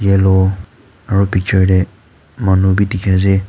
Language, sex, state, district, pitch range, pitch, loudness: Nagamese, male, Nagaland, Kohima, 95-100 Hz, 95 Hz, -14 LUFS